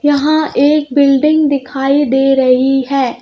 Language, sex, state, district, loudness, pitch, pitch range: Hindi, female, Madhya Pradesh, Bhopal, -12 LUFS, 275 Hz, 270-290 Hz